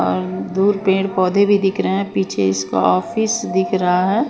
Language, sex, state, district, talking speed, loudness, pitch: Hindi, female, Chandigarh, Chandigarh, 180 wpm, -17 LUFS, 185 Hz